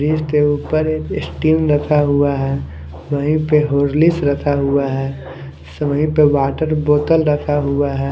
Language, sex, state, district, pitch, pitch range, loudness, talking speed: Hindi, male, Chandigarh, Chandigarh, 145 Hz, 140-150 Hz, -16 LUFS, 160 wpm